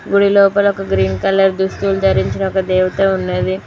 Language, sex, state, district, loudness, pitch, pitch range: Telugu, female, Telangana, Mahabubabad, -15 LUFS, 195 Hz, 185-195 Hz